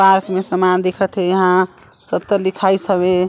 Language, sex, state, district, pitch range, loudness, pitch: Chhattisgarhi, female, Chhattisgarh, Sarguja, 185-190 Hz, -16 LUFS, 185 Hz